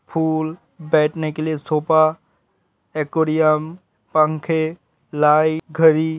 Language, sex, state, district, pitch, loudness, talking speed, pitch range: Hindi, male, Uttar Pradesh, Hamirpur, 155 Hz, -19 LUFS, 95 wpm, 155-160 Hz